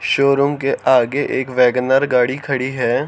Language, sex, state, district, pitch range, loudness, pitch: Hindi, male, Haryana, Charkhi Dadri, 125-140 Hz, -16 LUFS, 135 Hz